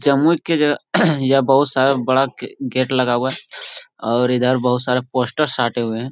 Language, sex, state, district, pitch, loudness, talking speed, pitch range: Hindi, male, Bihar, Jamui, 130 Hz, -18 LUFS, 195 wpm, 125-140 Hz